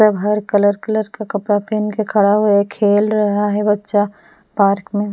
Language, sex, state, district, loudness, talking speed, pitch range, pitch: Hindi, female, Punjab, Pathankot, -16 LUFS, 185 wpm, 205-210 Hz, 205 Hz